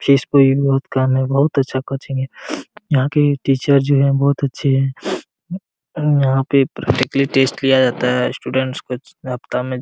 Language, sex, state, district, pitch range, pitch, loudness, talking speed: Hindi, male, Jharkhand, Jamtara, 130-140 Hz, 135 Hz, -17 LUFS, 145 wpm